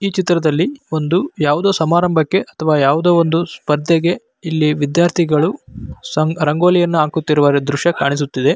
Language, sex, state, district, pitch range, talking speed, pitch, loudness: Kannada, male, Karnataka, Bellary, 150-175 Hz, 110 wpm, 160 Hz, -15 LUFS